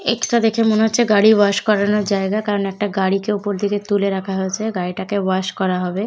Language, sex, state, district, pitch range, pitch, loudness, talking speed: Bengali, male, West Bengal, Jalpaiguri, 190-215 Hz, 205 Hz, -18 LUFS, 205 wpm